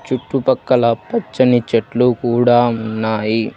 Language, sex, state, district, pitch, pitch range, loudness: Telugu, male, Telangana, Hyderabad, 120 Hz, 115-130 Hz, -16 LUFS